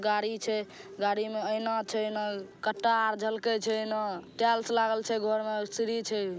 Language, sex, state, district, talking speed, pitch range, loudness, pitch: Maithili, female, Bihar, Saharsa, 140 wpm, 210-225 Hz, -30 LUFS, 215 Hz